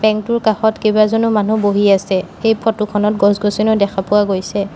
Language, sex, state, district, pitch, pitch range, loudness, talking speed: Assamese, female, Assam, Sonitpur, 210 Hz, 200-220 Hz, -15 LUFS, 190 wpm